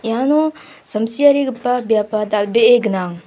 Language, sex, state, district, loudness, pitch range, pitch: Garo, female, Meghalaya, South Garo Hills, -16 LUFS, 215-260 Hz, 230 Hz